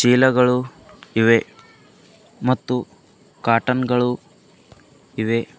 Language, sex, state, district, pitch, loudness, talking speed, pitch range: Kannada, male, Karnataka, Bidar, 125 Hz, -20 LUFS, 65 wpm, 115-125 Hz